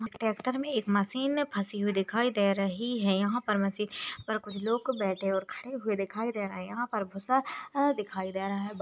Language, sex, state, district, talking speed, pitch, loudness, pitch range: Hindi, female, Maharashtra, Aurangabad, 225 wpm, 210 Hz, -31 LUFS, 195-245 Hz